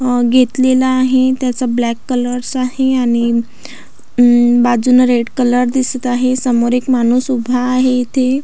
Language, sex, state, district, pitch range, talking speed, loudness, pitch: Marathi, female, Maharashtra, Aurangabad, 245-255 Hz, 135 wpm, -13 LUFS, 250 Hz